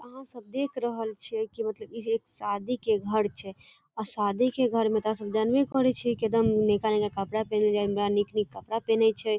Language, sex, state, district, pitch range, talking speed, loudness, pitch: Maithili, female, Bihar, Darbhanga, 210-245 Hz, 235 wpm, -28 LUFS, 220 Hz